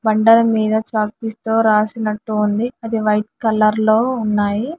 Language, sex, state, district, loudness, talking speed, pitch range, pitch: Telugu, female, Telangana, Hyderabad, -17 LUFS, 150 wpm, 215-225 Hz, 220 Hz